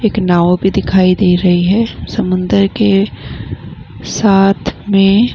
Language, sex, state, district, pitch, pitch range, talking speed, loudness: Hindi, female, Bihar, Vaishali, 195 Hz, 185-205 Hz, 125 wpm, -12 LUFS